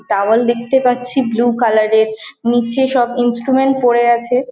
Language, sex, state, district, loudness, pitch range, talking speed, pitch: Bengali, female, West Bengal, Jhargram, -14 LUFS, 235-255 Hz, 145 wpm, 240 Hz